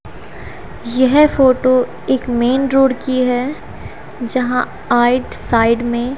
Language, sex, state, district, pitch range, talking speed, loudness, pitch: Hindi, female, Haryana, Rohtak, 240-265 Hz, 105 wpm, -15 LUFS, 255 Hz